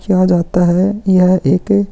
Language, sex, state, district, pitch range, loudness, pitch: Hindi, male, Chhattisgarh, Kabirdham, 180-195 Hz, -13 LUFS, 185 Hz